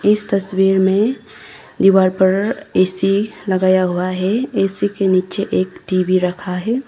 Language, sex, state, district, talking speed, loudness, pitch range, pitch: Hindi, female, Sikkim, Gangtok, 140 wpm, -16 LUFS, 185-205 Hz, 195 Hz